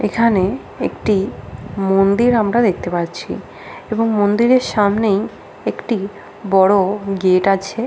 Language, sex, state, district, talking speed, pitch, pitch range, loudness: Bengali, female, West Bengal, Paschim Medinipur, 100 wpm, 200 Hz, 195-220 Hz, -17 LUFS